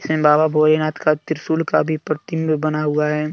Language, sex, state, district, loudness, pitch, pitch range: Hindi, male, Jharkhand, Deoghar, -18 LUFS, 155 Hz, 150-155 Hz